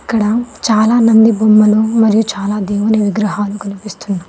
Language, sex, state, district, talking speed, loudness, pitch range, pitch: Telugu, female, Telangana, Mahabubabad, 125 wpm, -12 LUFS, 205-220 Hz, 215 Hz